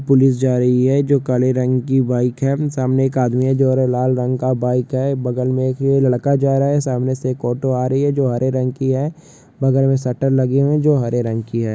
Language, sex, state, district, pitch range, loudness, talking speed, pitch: Hindi, male, Jharkhand, Sahebganj, 125-135 Hz, -17 LUFS, 255 wpm, 130 Hz